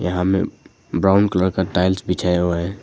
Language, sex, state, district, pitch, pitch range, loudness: Hindi, male, Arunachal Pradesh, Longding, 95 Hz, 90-95 Hz, -19 LUFS